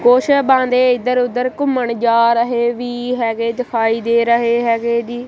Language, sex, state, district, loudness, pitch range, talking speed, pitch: Punjabi, female, Punjab, Kapurthala, -16 LUFS, 235-250 Hz, 160 wpm, 240 Hz